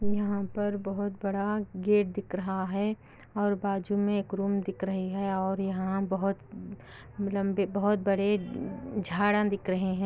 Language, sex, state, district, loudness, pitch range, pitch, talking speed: Hindi, female, Andhra Pradesh, Anantapur, -30 LUFS, 195-205 Hz, 200 Hz, 150 wpm